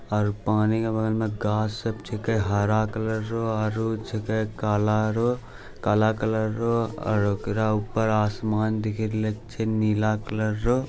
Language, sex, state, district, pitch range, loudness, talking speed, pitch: Angika, male, Bihar, Bhagalpur, 105-110 Hz, -25 LUFS, 160 wpm, 110 Hz